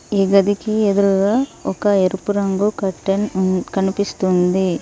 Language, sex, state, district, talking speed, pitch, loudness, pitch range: Telugu, female, Telangana, Mahabubabad, 110 wpm, 195 Hz, -18 LUFS, 190-205 Hz